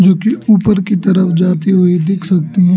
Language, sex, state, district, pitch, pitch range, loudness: Hindi, male, Arunachal Pradesh, Lower Dibang Valley, 185 Hz, 180-200 Hz, -12 LUFS